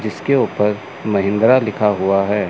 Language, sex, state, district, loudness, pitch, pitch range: Hindi, male, Chandigarh, Chandigarh, -17 LUFS, 105 Hz, 100-110 Hz